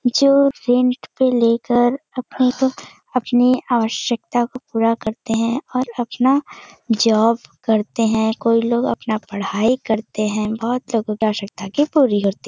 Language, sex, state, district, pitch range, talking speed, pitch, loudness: Hindi, female, Uttar Pradesh, Varanasi, 220-255 Hz, 150 wpm, 235 Hz, -18 LUFS